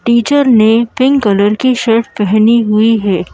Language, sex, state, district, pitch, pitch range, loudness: Hindi, female, Madhya Pradesh, Bhopal, 225 Hz, 210-245 Hz, -10 LUFS